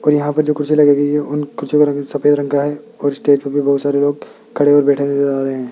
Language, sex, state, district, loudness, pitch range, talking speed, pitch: Hindi, male, Rajasthan, Jaipur, -15 LUFS, 140-145 Hz, 325 wpm, 145 Hz